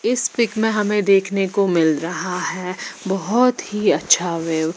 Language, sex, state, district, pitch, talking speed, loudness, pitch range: Hindi, female, Bihar, Patna, 195 Hz, 175 wpm, -19 LUFS, 175-215 Hz